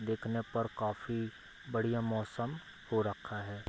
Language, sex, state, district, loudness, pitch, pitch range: Hindi, male, Bihar, Bhagalpur, -37 LUFS, 115 Hz, 110-115 Hz